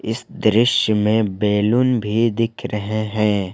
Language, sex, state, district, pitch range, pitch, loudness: Hindi, male, Jharkhand, Palamu, 105-115 Hz, 110 Hz, -18 LUFS